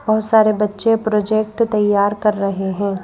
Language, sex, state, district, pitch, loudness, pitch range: Hindi, female, Madhya Pradesh, Bhopal, 210 Hz, -17 LUFS, 200-215 Hz